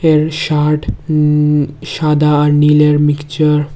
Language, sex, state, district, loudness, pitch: Bengali, male, Tripura, West Tripura, -13 LUFS, 150 Hz